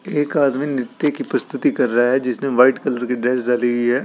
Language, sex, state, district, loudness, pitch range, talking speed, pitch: Hindi, male, Uttar Pradesh, Etah, -18 LUFS, 125-140 Hz, 235 wpm, 125 Hz